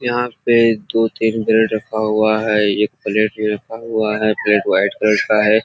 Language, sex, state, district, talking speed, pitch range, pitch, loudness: Hindi, male, Bihar, Kishanganj, 190 wpm, 105-115 Hz, 110 Hz, -16 LUFS